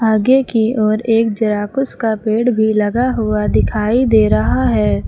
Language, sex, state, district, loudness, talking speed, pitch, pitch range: Hindi, female, Uttar Pradesh, Lucknow, -15 LUFS, 165 wpm, 220 Hz, 210-230 Hz